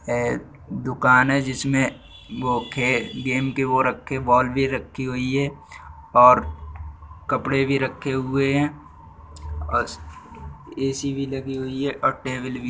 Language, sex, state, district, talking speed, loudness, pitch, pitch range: Bundeli, male, Uttar Pradesh, Budaun, 135 wpm, -22 LUFS, 130 Hz, 120-135 Hz